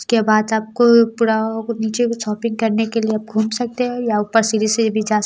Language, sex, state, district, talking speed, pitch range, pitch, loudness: Hindi, female, Bihar, Muzaffarpur, 240 wpm, 220-230 Hz, 225 Hz, -18 LUFS